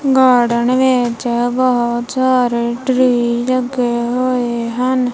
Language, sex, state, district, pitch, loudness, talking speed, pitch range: Punjabi, female, Punjab, Kapurthala, 245 Hz, -15 LUFS, 95 wpm, 240-255 Hz